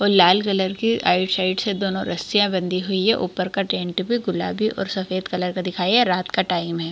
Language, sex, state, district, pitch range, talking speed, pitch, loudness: Hindi, female, Chhattisgarh, Bilaspur, 180-200 Hz, 245 wpm, 185 Hz, -21 LUFS